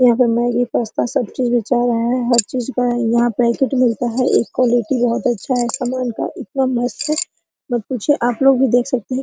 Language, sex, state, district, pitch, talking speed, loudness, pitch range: Hindi, female, Bihar, Araria, 245 Hz, 210 wpm, -17 LUFS, 240-255 Hz